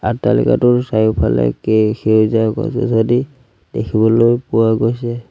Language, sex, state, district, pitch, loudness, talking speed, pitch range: Assamese, male, Assam, Sonitpur, 115 Hz, -15 LUFS, 90 wpm, 110-120 Hz